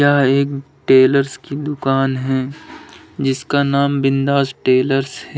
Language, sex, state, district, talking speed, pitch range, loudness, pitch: Hindi, male, Uttar Pradesh, Lalitpur, 125 wpm, 135-140 Hz, -16 LUFS, 135 Hz